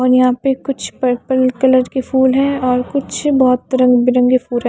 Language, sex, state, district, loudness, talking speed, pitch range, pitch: Hindi, female, Maharashtra, Mumbai Suburban, -14 LUFS, 205 wpm, 250-265 Hz, 255 Hz